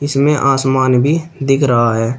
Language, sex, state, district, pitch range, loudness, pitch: Hindi, male, Uttar Pradesh, Shamli, 130-145 Hz, -14 LUFS, 135 Hz